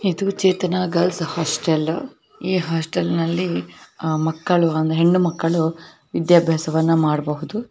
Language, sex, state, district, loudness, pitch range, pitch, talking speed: Kannada, female, Karnataka, Belgaum, -20 LUFS, 160-180 Hz, 165 Hz, 100 wpm